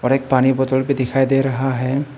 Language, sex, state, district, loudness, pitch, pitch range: Hindi, male, Arunachal Pradesh, Papum Pare, -18 LUFS, 135 Hz, 130-135 Hz